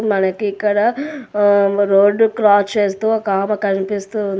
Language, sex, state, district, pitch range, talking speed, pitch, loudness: Telugu, female, Telangana, Hyderabad, 200-215 Hz, 125 wpm, 205 Hz, -16 LUFS